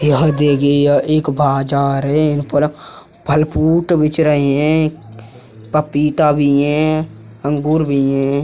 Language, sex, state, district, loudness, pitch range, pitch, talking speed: Hindi, male, Uttar Pradesh, Hamirpur, -15 LUFS, 140-155 Hz, 145 Hz, 135 wpm